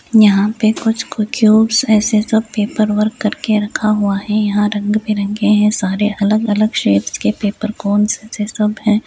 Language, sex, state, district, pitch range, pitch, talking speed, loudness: Hindi, female, Uttar Pradesh, Deoria, 210-215 Hz, 215 Hz, 160 wpm, -15 LUFS